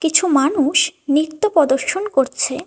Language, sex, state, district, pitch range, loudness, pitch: Bengali, female, Tripura, West Tripura, 275-330 Hz, -17 LUFS, 310 Hz